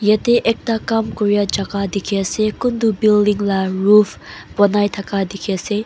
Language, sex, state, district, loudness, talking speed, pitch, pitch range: Nagamese, female, Mizoram, Aizawl, -17 LUFS, 155 wpm, 205 Hz, 200-215 Hz